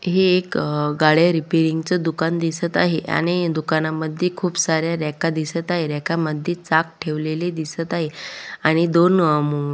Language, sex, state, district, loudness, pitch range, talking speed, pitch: Marathi, female, Maharashtra, Solapur, -20 LUFS, 155-170 Hz, 165 wpm, 165 Hz